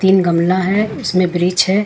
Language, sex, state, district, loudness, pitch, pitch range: Hindi, female, Jharkhand, Ranchi, -15 LUFS, 185 Hz, 180-190 Hz